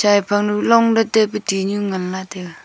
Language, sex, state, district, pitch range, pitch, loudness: Wancho, female, Arunachal Pradesh, Longding, 190-210 Hz, 205 Hz, -17 LUFS